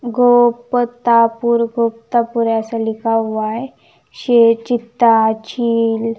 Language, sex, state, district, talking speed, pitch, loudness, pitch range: Hindi, female, Punjab, Kapurthala, 85 wpm, 230 Hz, -15 LUFS, 225-240 Hz